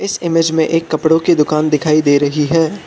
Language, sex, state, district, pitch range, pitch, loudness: Hindi, male, Arunachal Pradesh, Lower Dibang Valley, 150-165 Hz, 160 Hz, -14 LUFS